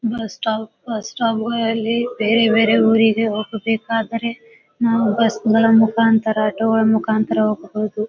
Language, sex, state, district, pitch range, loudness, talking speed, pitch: Kannada, female, Karnataka, Bijapur, 220-230 Hz, -18 LUFS, 125 wpm, 225 Hz